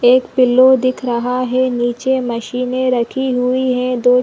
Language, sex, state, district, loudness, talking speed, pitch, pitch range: Hindi, female, Chhattisgarh, Rajnandgaon, -15 LUFS, 170 wpm, 250 Hz, 245-255 Hz